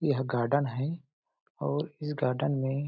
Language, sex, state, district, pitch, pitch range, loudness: Hindi, male, Chhattisgarh, Balrampur, 140 Hz, 130-150 Hz, -31 LUFS